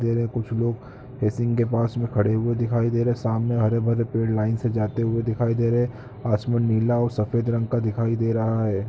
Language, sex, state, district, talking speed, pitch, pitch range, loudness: Hindi, male, Chhattisgarh, Korba, 215 wpm, 115 Hz, 115-120 Hz, -23 LUFS